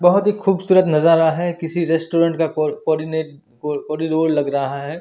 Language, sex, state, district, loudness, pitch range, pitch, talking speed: Hindi, male, Chandigarh, Chandigarh, -18 LUFS, 155-170 Hz, 160 Hz, 165 wpm